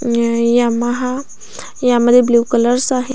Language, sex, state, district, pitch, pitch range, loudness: Marathi, female, Maharashtra, Aurangabad, 240 Hz, 235-250 Hz, -14 LUFS